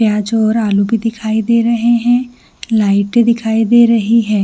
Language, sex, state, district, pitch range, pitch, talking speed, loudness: Hindi, female, Chhattisgarh, Bilaspur, 215-235 Hz, 225 Hz, 175 wpm, -13 LUFS